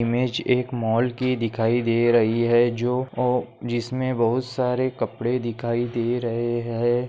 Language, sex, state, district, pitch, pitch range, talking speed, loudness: Hindi, male, Maharashtra, Pune, 120 Hz, 115-125 Hz, 150 wpm, -23 LUFS